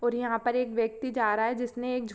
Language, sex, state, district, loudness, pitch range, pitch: Hindi, female, Jharkhand, Sahebganj, -29 LUFS, 230-245 Hz, 240 Hz